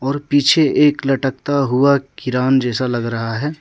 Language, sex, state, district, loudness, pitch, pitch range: Hindi, male, Jharkhand, Deoghar, -16 LUFS, 135 Hz, 130-145 Hz